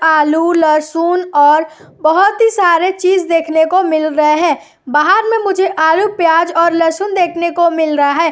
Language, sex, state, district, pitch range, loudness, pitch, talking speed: Hindi, female, Uttar Pradesh, Jyotiba Phule Nagar, 315-365 Hz, -12 LUFS, 335 Hz, 165 wpm